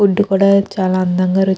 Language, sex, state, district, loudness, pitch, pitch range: Telugu, female, Andhra Pradesh, Krishna, -14 LUFS, 190 Hz, 185-200 Hz